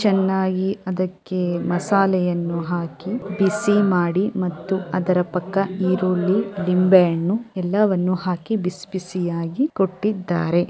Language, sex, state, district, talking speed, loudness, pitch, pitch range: Kannada, female, Karnataka, Chamarajanagar, 95 wpm, -21 LUFS, 185 Hz, 180-195 Hz